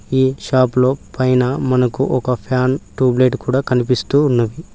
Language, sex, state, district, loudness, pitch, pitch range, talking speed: Telugu, male, Telangana, Mahabubabad, -16 LUFS, 130 Hz, 125-130 Hz, 150 wpm